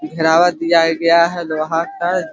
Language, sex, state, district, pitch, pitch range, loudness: Hindi, male, Chhattisgarh, Korba, 165 Hz, 160-175 Hz, -15 LUFS